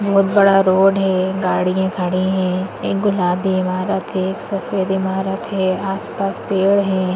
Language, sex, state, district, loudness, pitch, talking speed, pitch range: Hindi, female, Chhattisgarh, Bastar, -18 LUFS, 190 Hz, 150 wpm, 185-195 Hz